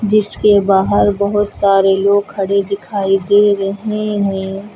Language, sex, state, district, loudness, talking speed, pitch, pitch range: Hindi, female, Uttar Pradesh, Lucknow, -14 LUFS, 125 wpm, 200 Hz, 195-205 Hz